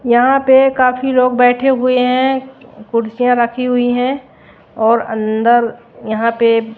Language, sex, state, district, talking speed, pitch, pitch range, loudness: Hindi, female, Odisha, Malkangiri, 140 wpm, 245 Hz, 230-255 Hz, -14 LUFS